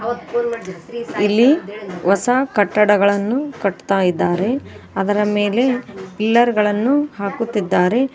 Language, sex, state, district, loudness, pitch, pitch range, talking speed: Kannada, female, Karnataka, Koppal, -17 LUFS, 210 Hz, 200-240 Hz, 65 wpm